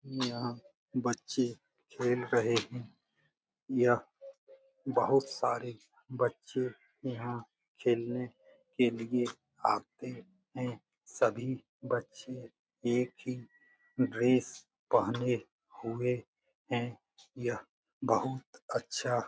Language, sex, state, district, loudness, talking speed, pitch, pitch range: Hindi, male, Bihar, Jamui, -34 LUFS, 90 wpm, 125 Hz, 120-130 Hz